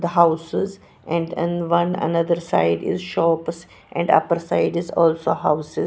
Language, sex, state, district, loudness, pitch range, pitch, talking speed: English, female, Punjab, Pathankot, -21 LUFS, 165-170 Hz, 170 Hz, 155 wpm